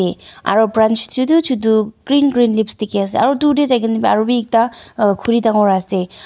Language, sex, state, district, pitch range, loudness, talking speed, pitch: Nagamese, female, Nagaland, Dimapur, 215-250 Hz, -15 LUFS, 200 wpm, 225 Hz